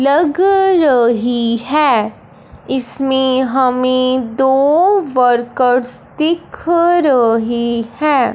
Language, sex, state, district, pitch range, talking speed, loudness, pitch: Hindi, female, Punjab, Fazilka, 245-305 Hz, 70 wpm, -13 LUFS, 265 Hz